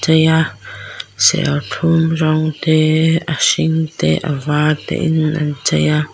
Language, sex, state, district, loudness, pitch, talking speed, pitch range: Mizo, female, Mizoram, Aizawl, -15 LUFS, 155 Hz, 125 wpm, 150-160 Hz